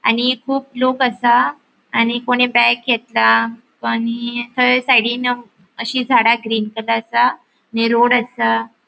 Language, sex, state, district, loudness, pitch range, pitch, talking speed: Konkani, female, Goa, North and South Goa, -16 LUFS, 230-250 Hz, 240 Hz, 130 wpm